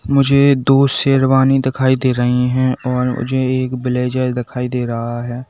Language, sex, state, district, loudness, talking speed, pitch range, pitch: Hindi, male, Uttar Pradesh, Saharanpur, -15 LUFS, 165 wpm, 125-130 Hz, 130 Hz